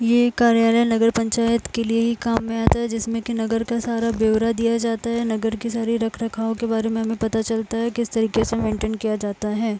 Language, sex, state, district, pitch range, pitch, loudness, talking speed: Hindi, female, Uttar Pradesh, Deoria, 225-230 Hz, 230 Hz, -21 LUFS, 245 wpm